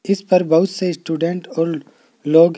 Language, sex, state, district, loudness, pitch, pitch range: Hindi, male, Rajasthan, Jaipur, -18 LUFS, 170 Hz, 165-180 Hz